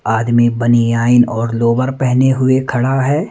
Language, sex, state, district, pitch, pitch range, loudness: Hindi, male, Madhya Pradesh, Umaria, 120 Hz, 115-130 Hz, -14 LUFS